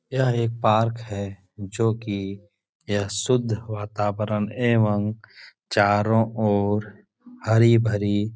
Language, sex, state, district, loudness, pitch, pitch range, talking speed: Hindi, male, Bihar, Jahanabad, -23 LUFS, 105 Hz, 105-115 Hz, 100 wpm